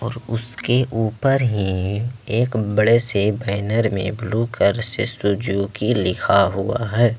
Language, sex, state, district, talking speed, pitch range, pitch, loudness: Hindi, male, Jharkhand, Ranchi, 125 wpm, 100-120 Hz, 110 Hz, -20 LUFS